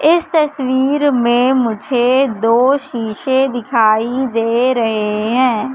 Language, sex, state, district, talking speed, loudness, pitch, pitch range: Hindi, female, Madhya Pradesh, Katni, 105 wpm, -15 LUFS, 250 Hz, 230-265 Hz